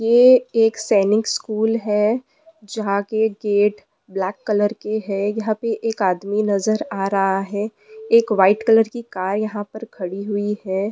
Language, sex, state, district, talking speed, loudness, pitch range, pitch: Hindi, female, West Bengal, Purulia, 165 wpm, -19 LUFS, 200-225 Hz, 210 Hz